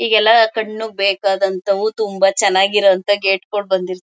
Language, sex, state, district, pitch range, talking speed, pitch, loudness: Kannada, female, Karnataka, Mysore, 195-215 Hz, 135 wpm, 200 Hz, -15 LUFS